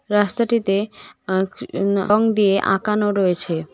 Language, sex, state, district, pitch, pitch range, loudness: Bengali, female, West Bengal, Cooch Behar, 200 Hz, 190-210 Hz, -19 LUFS